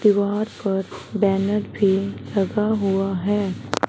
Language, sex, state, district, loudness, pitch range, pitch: Hindi, female, Punjab, Fazilka, -22 LUFS, 195-205 Hz, 200 Hz